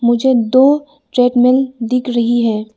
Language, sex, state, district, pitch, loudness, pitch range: Hindi, female, Arunachal Pradesh, Lower Dibang Valley, 250 Hz, -14 LUFS, 235-265 Hz